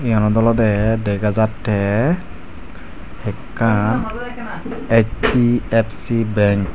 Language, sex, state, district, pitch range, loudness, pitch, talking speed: Chakma, male, Tripura, Dhalai, 100-115 Hz, -18 LUFS, 110 Hz, 70 wpm